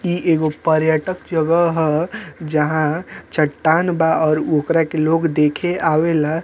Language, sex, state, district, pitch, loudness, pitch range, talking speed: Bhojpuri, male, Bihar, Muzaffarpur, 160 Hz, -18 LUFS, 155-165 Hz, 130 wpm